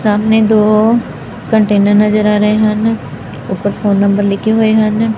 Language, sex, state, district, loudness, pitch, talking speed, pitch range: Punjabi, female, Punjab, Fazilka, -12 LUFS, 210 Hz, 150 wpm, 205-220 Hz